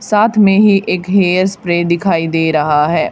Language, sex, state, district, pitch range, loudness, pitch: Hindi, female, Haryana, Charkhi Dadri, 165-200 Hz, -12 LUFS, 185 Hz